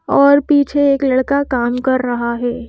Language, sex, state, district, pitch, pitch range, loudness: Hindi, female, Madhya Pradesh, Bhopal, 260 Hz, 245-280 Hz, -15 LUFS